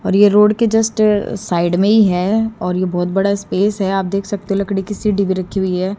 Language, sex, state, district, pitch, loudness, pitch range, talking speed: Hindi, female, Haryana, Jhajjar, 200 Hz, -16 LUFS, 190-210 Hz, 260 wpm